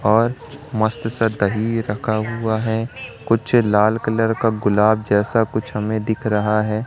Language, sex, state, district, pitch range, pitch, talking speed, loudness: Hindi, male, Madhya Pradesh, Katni, 110-115 Hz, 110 Hz, 155 wpm, -19 LUFS